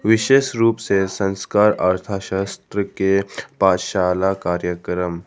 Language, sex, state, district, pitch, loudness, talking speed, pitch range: Hindi, male, Arunachal Pradesh, Papum Pare, 95 Hz, -19 LUFS, 90 wpm, 90-105 Hz